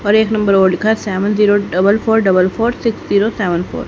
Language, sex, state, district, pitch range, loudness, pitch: Hindi, female, Haryana, Charkhi Dadri, 190-220 Hz, -14 LUFS, 205 Hz